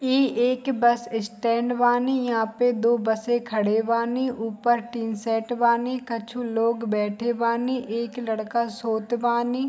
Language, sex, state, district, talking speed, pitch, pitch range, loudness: Hindi, female, Bihar, Saharsa, 135 wpm, 235 Hz, 225-245 Hz, -24 LUFS